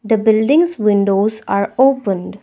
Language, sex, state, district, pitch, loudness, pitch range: English, female, Assam, Kamrup Metropolitan, 215 Hz, -15 LUFS, 200-235 Hz